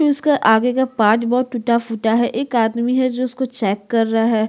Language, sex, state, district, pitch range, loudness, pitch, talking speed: Hindi, female, Chhattisgarh, Korba, 225-255 Hz, -18 LUFS, 235 Hz, 225 wpm